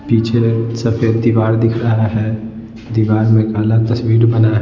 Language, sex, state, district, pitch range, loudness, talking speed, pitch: Hindi, male, Bihar, Patna, 110-115 Hz, -14 LUFS, 155 wpm, 115 Hz